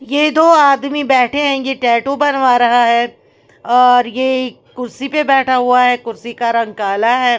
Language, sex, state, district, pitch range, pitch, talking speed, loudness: Hindi, female, Bihar, West Champaran, 240-275 Hz, 250 Hz, 180 wpm, -13 LUFS